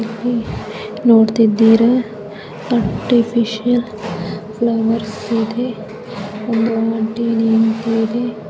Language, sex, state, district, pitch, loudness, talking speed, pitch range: Kannada, female, Karnataka, Bellary, 225 Hz, -16 LUFS, 55 wpm, 215-235 Hz